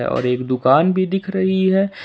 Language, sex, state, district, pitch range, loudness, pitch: Hindi, male, Jharkhand, Ranchi, 130-195 Hz, -17 LUFS, 190 Hz